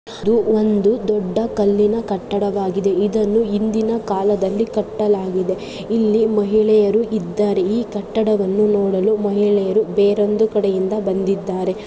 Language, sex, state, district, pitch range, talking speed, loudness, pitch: Kannada, female, Karnataka, Gulbarga, 200-215 Hz, 95 wpm, -18 LUFS, 210 Hz